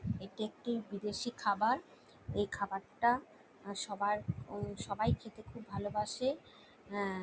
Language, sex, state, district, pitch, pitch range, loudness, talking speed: Bengali, female, West Bengal, Jalpaiguri, 210 Hz, 200-230 Hz, -37 LUFS, 90 wpm